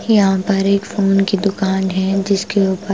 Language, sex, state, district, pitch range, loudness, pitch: Hindi, female, Punjab, Pathankot, 190-200 Hz, -16 LUFS, 195 Hz